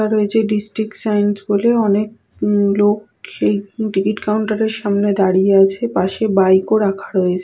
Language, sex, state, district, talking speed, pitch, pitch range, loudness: Bengali, female, West Bengal, Purulia, 145 wpm, 205 Hz, 195-215 Hz, -16 LUFS